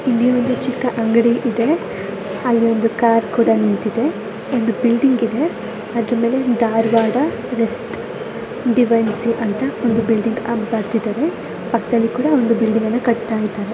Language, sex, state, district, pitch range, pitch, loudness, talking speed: Kannada, female, Karnataka, Dharwad, 225-245 Hz, 230 Hz, -18 LUFS, 85 wpm